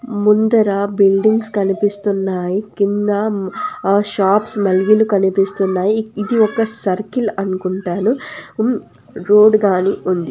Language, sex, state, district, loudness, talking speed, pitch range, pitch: Telugu, female, Andhra Pradesh, Anantapur, -16 LUFS, 105 wpm, 195-220 Hz, 205 Hz